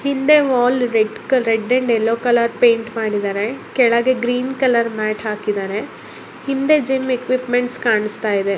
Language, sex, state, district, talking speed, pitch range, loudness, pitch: Kannada, female, Karnataka, Bellary, 135 wpm, 220-255 Hz, -17 LUFS, 240 Hz